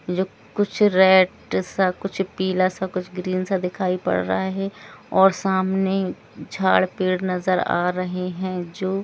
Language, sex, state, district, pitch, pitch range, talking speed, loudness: Hindi, female, Jharkhand, Jamtara, 185 Hz, 180-190 Hz, 150 wpm, -22 LUFS